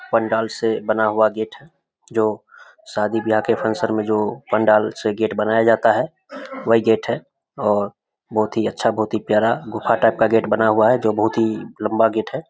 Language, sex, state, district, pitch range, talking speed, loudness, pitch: Hindi, male, Bihar, Samastipur, 110-115 Hz, 200 wpm, -19 LUFS, 110 Hz